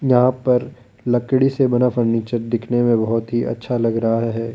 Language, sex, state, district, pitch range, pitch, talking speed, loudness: Hindi, male, Rajasthan, Jaipur, 115-125 Hz, 120 Hz, 185 wpm, -19 LUFS